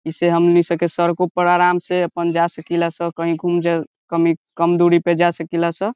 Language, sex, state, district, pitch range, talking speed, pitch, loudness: Bhojpuri, male, Bihar, Saran, 170-175 Hz, 250 wpm, 170 Hz, -18 LUFS